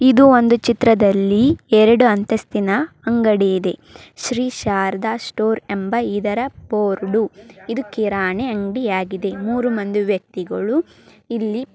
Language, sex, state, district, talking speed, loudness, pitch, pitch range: Kannada, male, Karnataka, Dharwad, 105 wpm, -18 LUFS, 220 Hz, 200-235 Hz